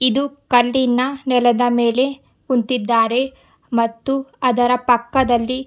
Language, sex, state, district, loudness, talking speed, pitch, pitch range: Kannada, female, Karnataka, Bidar, -18 LUFS, 85 wpm, 250 Hz, 240-265 Hz